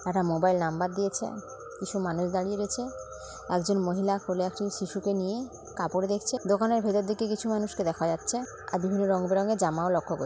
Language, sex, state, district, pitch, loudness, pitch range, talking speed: Bengali, female, West Bengal, Paschim Medinipur, 190 Hz, -29 LUFS, 180-205 Hz, 175 wpm